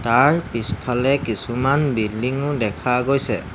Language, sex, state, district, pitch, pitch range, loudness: Assamese, male, Assam, Hailakandi, 125 Hz, 115-140 Hz, -20 LUFS